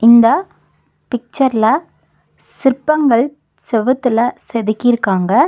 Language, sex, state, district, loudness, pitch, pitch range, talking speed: Tamil, female, Tamil Nadu, Nilgiris, -15 LUFS, 245 Hz, 230-270 Hz, 55 wpm